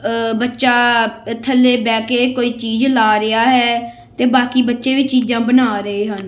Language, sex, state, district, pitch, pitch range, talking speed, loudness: Punjabi, female, Punjab, Kapurthala, 240 Hz, 225-250 Hz, 170 wpm, -15 LUFS